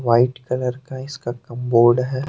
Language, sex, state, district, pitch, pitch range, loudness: Hindi, male, Jharkhand, Deoghar, 125 Hz, 120-130 Hz, -20 LUFS